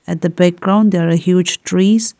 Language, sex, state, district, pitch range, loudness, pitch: English, female, Arunachal Pradesh, Lower Dibang Valley, 175-200 Hz, -14 LUFS, 180 Hz